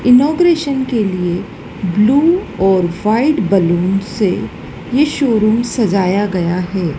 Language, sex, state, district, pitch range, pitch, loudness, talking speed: Hindi, female, Madhya Pradesh, Dhar, 185-260 Hz, 205 Hz, -14 LUFS, 110 wpm